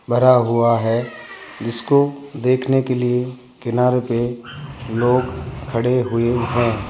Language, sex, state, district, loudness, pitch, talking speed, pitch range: Hindi, male, Rajasthan, Jaipur, -19 LUFS, 125 Hz, 115 wpm, 120-125 Hz